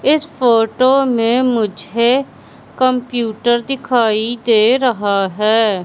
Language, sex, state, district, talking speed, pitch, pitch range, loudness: Hindi, female, Madhya Pradesh, Katni, 90 wpm, 235 Hz, 220-255 Hz, -15 LUFS